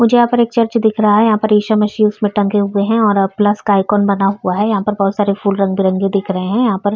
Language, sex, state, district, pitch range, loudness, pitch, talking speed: Hindi, female, Uttar Pradesh, Varanasi, 200-215 Hz, -14 LUFS, 205 Hz, 295 wpm